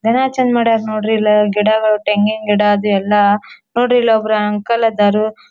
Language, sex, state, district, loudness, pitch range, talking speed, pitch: Kannada, female, Karnataka, Dharwad, -14 LUFS, 210-225 Hz, 165 wpm, 215 Hz